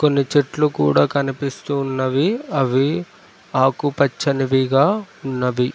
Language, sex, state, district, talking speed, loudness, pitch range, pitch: Telugu, male, Telangana, Mahabubabad, 85 wpm, -19 LUFS, 130-150 Hz, 140 Hz